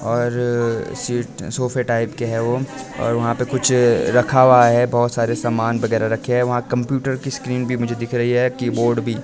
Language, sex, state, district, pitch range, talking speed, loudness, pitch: Hindi, male, Himachal Pradesh, Shimla, 115-125 Hz, 200 wpm, -19 LUFS, 120 Hz